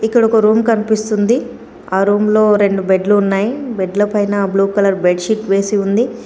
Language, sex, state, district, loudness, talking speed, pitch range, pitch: Telugu, female, Telangana, Komaram Bheem, -14 LUFS, 155 wpm, 195-220 Hz, 205 Hz